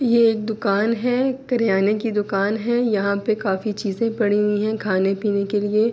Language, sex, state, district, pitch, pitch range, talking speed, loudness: Urdu, female, Andhra Pradesh, Anantapur, 215 Hz, 200-230 Hz, 180 wpm, -21 LUFS